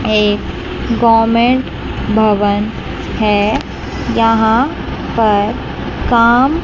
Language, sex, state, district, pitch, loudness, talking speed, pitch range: Hindi, male, Chandigarh, Chandigarh, 225 Hz, -14 LUFS, 65 wpm, 210-235 Hz